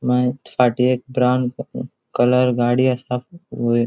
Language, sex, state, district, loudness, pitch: Konkani, male, Goa, North and South Goa, -19 LUFS, 125 Hz